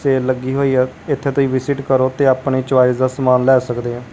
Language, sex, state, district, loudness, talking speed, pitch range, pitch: Punjabi, male, Punjab, Kapurthala, -16 LUFS, 235 wpm, 130-135 Hz, 130 Hz